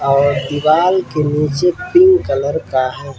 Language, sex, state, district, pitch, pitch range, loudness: Hindi, male, Rajasthan, Churu, 150 Hz, 140-180 Hz, -14 LUFS